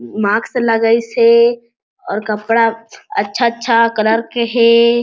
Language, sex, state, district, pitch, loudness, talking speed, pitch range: Chhattisgarhi, female, Chhattisgarh, Jashpur, 230 Hz, -14 LUFS, 130 wpm, 225-235 Hz